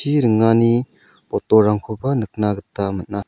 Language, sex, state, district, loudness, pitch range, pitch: Garo, male, Meghalaya, South Garo Hills, -18 LUFS, 100-115 Hz, 110 Hz